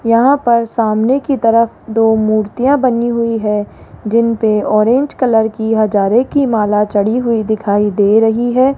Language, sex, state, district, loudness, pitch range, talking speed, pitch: Hindi, female, Rajasthan, Jaipur, -13 LUFS, 215-240 Hz, 165 wpm, 225 Hz